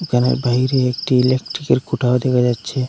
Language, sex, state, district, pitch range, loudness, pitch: Bengali, male, Assam, Hailakandi, 125-130 Hz, -17 LUFS, 125 Hz